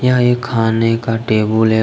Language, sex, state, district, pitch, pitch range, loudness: Hindi, male, Jharkhand, Deoghar, 115 Hz, 110-120 Hz, -15 LUFS